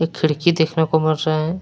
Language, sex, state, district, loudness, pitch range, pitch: Hindi, male, Jharkhand, Deoghar, -18 LUFS, 155-160 Hz, 160 Hz